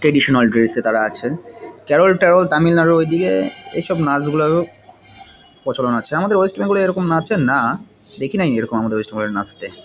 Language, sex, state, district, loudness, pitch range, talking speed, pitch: Bengali, male, West Bengal, Jalpaiguri, -17 LUFS, 115-170 Hz, 185 wpm, 150 Hz